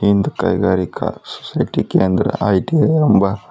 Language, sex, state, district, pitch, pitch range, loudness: Kannada, female, Karnataka, Bidar, 100 Hz, 100-150 Hz, -16 LUFS